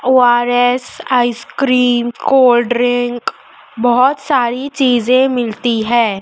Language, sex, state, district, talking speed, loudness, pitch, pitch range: Hindi, female, Madhya Pradesh, Dhar, 75 wpm, -13 LUFS, 245 Hz, 240-255 Hz